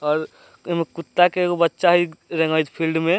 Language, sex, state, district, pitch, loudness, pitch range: Bajjika, male, Bihar, Vaishali, 170 Hz, -20 LUFS, 160-175 Hz